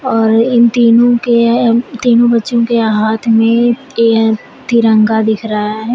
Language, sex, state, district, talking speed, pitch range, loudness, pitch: Hindi, female, Uttar Pradesh, Shamli, 150 wpm, 220-240 Hz, -11 LUFS, 230 Hz